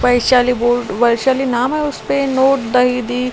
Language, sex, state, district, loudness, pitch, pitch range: Hindi, female, Delhi, New Delhi, -15 LUFS, 250 Hz, 245-265 Hz